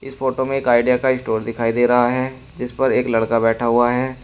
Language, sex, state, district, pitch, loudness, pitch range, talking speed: Hindi, male, Uttar Pradesh, Shamli, 125 Hz, -18 LUFS, 115-130 Hz, 255 wpm